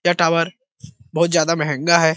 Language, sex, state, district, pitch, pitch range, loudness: Hindi, male, Bihar, Jahanabad, 165 Hz, 155-170 Hz, -18 LUFS